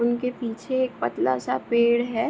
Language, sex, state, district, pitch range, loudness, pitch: Hindi, female, Bihar, Begusarai, 235-250 Hz, -24 LUFS, 240 Hz